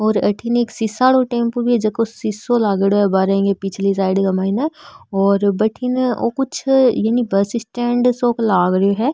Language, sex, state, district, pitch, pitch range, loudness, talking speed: Marwari, female, Rajasthan, Nagaur, 225 Hz, 200-245 Hz, -17 LUFS, 175 wpm